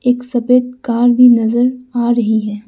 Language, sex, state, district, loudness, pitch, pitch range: Hindi, female, Arunachal Pradesh, Lower Dibang Valley, -13 LUFS, 245 Hz, 235-250 Hz